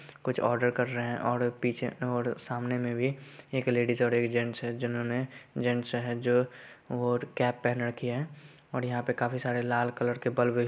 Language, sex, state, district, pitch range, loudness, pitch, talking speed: Hindi, male, Bihar, Saharsa, 120-125 Hz, -31 LUFS, 120 Hz, 195 wpm